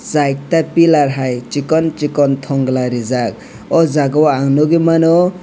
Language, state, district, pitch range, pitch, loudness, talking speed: Kokborok, Tripura, West Tripura, 135-165 Hz, 145 Hz, -14 LUFS, 130 wpm